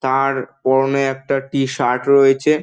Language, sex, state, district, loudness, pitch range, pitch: Bengali, male, West Bengal, Dakshin Dinajpur, -17 LUFS, 130-140 Hz, 135 Hz